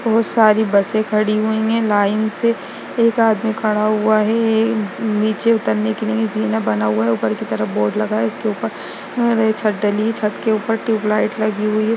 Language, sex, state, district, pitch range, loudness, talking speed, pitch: Hindi, female, Bihar, Jahanabad, 195-220 Hz, -18 LUFS, 200 wpm, 215 Hz